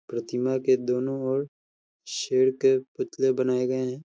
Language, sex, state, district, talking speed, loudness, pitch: Hindi, male, Uttar Pradesh, Hamirpur, 145 wpm, -26 LUFS, 130 Hz